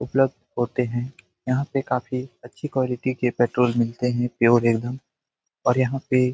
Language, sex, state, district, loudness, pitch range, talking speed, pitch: Hindi, male, Bihar, Jamui, -23 LUFS, 120-130 Hz, 170 wpm, 125 Hz